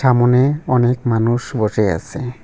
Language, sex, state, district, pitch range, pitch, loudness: Bengali, male, West Bengal, Cooch Behar, 115-125 Hz, 125 Hz, -16 LUFS